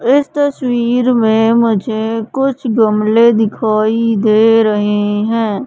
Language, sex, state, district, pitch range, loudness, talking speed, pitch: Hindi, female, Madhya Pradesh, Katni, 215-240 Hz, -13 LUFS, 105 wpm, 225 Hz